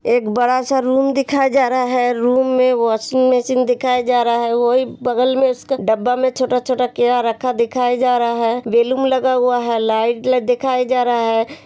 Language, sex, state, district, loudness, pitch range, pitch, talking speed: Hindi, female, Uttar Pradesh, Hamirpur, -16 LUFS, 240-255 Hz, 250 Hz, 200 wpm